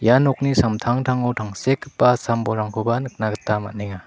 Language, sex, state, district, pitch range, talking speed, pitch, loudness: Garo, male, Meghalaya, South Garo Hills, 110-130 Hz, 135 wpm, 115 Hz, -21 LUFS